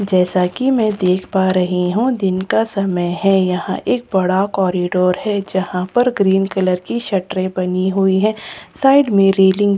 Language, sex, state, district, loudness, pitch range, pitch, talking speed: Hindi, female, Bihar, Katihar, -16 LUFS, 185-205 Hz, 190 Hz, 185 wpm